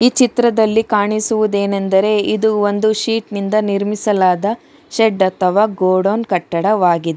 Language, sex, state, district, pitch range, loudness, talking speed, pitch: Kannada, female, Karnataka, Bangalore, 195-220 Hz, -15 LUFS, 100 wpm, 210 Hz